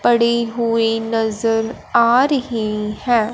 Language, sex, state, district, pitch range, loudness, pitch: Hindi, male, Punjab, Fazilka, 225-235 Hz, -18 LUFS, 230 Hz